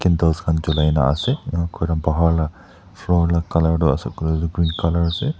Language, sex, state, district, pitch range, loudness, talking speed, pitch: Nagamese, male, Nagaland, Dimapur, 80-85 Hz, -20 LUFS, 190 wpm, 85 Hz